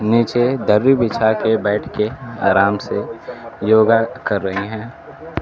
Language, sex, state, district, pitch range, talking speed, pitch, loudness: Hindi, male, Bihar, Kaimur, 105-115 Hz, 135 wpm, 110 Hz, -17 LUFS